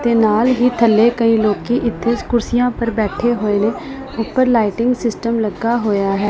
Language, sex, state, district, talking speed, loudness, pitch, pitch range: Punjabi, female, Punjab, Pathankot, 170 wpm, -16 LUFS, 230 Hz, 215-240 Hz